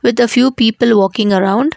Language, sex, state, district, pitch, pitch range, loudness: English, female, Karnataka, Bangalore, 235 Hz, 200-250 Hz, -12 LUFS